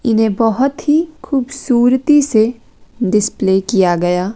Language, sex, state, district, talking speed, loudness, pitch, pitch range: Hindi, female, Chandigarh, Chandigarh, 110 wpm, -14 LUFS, 230 Hz, 210-270 Hz